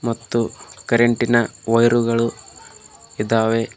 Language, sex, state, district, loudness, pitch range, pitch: Kannada, male, Karnataka, Bidar, -19 LUFS, 115-120 Hz, 115 Hz